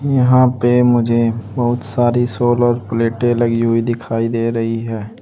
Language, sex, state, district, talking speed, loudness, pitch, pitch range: Hindi, male, Uttar Pradesh, Saharanpur, 150 wpm, -16 LUFS, 120 Hz, 115-120 Hz